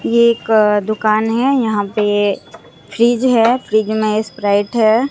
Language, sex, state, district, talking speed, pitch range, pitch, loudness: Hindi, female, Bihar, Katihar, 140 wpm, 210-235 Hz, 220 Hz, -15 LUFS